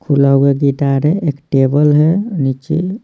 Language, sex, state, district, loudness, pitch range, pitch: Hindi, male, Bihar, Patna, -13 LUFS, 140-160 Hz, 145 Hz